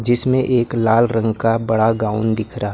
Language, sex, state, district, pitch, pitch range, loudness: Hindi, male, Maharashtra, Gondia, 115 Hz, 110-120 Hz, -17 LUFS